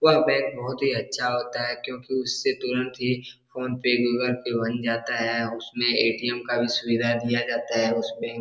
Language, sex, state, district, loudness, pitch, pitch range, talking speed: Hindi, male, Bihar, Jahanabad, -25 LUFS, 120 Hz, 115-125 Hz, 200 wpm